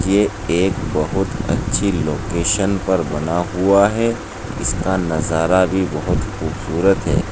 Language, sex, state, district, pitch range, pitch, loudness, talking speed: Hindi, male, Uttar Pradesh, Saharanpur, 85-100 Hz, 95 Hz, -18 LUFS, 130 wpm